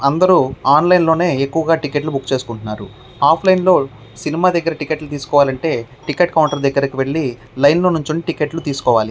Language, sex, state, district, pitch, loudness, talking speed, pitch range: Telugu, male, Andhra Pradesh, Krishna, 145 Hz, -16 LUFS, 140 wpm, 135-165 Hz